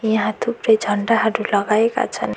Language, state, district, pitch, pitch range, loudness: Nepali, West Bengal, Darjeeling, 220 Hz, 205-230 Hz, -18 LUFS